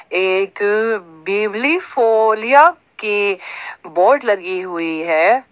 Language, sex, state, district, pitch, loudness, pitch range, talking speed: Hindi, female, Jharkhand, Ranchi, 205 Hz, -16 LUFS, 185-225 Hz, 75 wpm